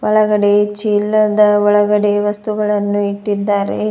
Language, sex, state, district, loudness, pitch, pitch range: Kannada, female, Karnataka, Bidar, -14 LUFS, 205 Hz, 205-210 Hz